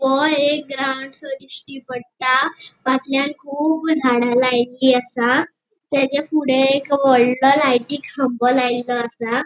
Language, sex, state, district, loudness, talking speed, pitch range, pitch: Konkani, female, Goa, North and South Goa, -18 LUFS, 120 wpm, 250-285 Hz, 270 Hz